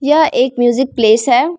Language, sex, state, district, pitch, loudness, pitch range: Hindi, female, Bihar, Samastipur, 265 Hz, -12 LUFS, 245-305 Hz